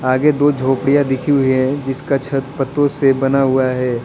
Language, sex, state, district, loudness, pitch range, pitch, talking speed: Hindi, male, Arunachal Pradesh, Lower Dibang Valley, -16 LUFS, 130-140 Hz, 135 Hz, 195 wpm